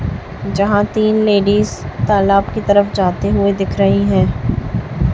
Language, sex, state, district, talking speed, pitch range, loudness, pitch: Hindi, female, Chhattisgarh, Raipur, 130 wpm, 195-205 Hz, -15 LUFS, 200 Hz